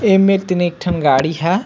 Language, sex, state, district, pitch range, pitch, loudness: Chhattisgarhi, male, Chhattisgarh, Sukma, 170-195 Hz, 180 Hz, -15 LUFS